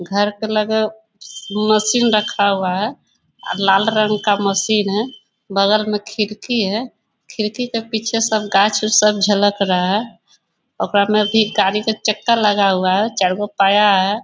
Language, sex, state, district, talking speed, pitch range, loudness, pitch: Hindi, female, Bihar, Bhagalpur, 170 wpm, 200-220 Hz, -17 LUFS, 210 Hz